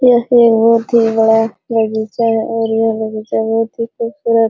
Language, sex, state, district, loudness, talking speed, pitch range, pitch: Hindi, female, Bihar, Araria, -14 LUFS, 175 wpm, 225-230 Hz, 225 Hz